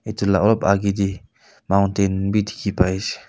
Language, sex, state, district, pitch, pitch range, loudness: Nagamese, male, Nagaland, Kohima, 100 Hz, 95-100 Hz, -20 LUFS